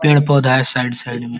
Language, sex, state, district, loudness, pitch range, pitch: Hindi, male, Uttar Pradesh, Varanasi, -16 LUFS, 120-140 Hz, 130 Hz